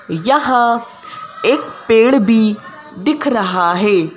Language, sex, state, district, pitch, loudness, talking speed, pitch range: Hindi, female, Madhya Pradesh, Bhopal, 235 Hz, -14 LUFS, 115 wpm, 200-290 Hz